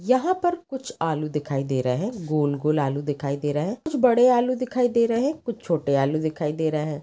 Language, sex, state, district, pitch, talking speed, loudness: Hindi, female, Maharashtra, Pune, 160 Hz, 220 wpm, -24 LUFS